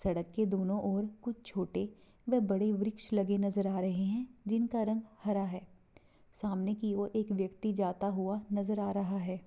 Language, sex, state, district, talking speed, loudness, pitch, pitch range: Hindi, female, Bihar, Darbhanga, 185 wpm, -34 LUFS, 200 Hz, 195-215 Hz